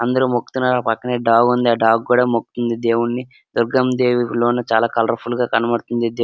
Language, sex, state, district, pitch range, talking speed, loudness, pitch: Telugu, male, Andhra Pradesh, Srikakulam, 115-125 Hz, 190 wpm, -18 LUFS, 120 Hz